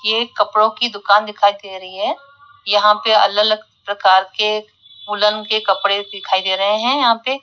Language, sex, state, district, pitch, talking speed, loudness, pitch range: Hindi, female, Rajasthan, Jaipur, 210 Hz, 185 wpm, -16 LUFS, 200-215 Hz